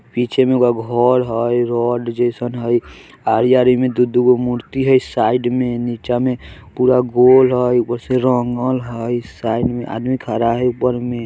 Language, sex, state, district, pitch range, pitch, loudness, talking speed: Hindi, male, Bihar, Vaishali, 120-125 Hz, 120 Hz, -16 LUFS, 170 wpm